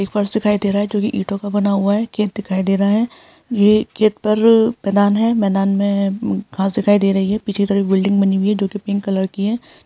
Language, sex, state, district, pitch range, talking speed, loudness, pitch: Hindi, female, Chhattisgarh, Sarguja, 195-215 Hz, 260 wpm, -17 LUFS, 205 Hz